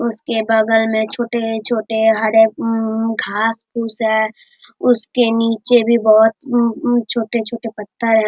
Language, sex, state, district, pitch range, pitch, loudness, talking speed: Hindi, male, Bihar, Darbhanga, 220-235 Hz, 225 Hz, -16 LUFS, 125 wpm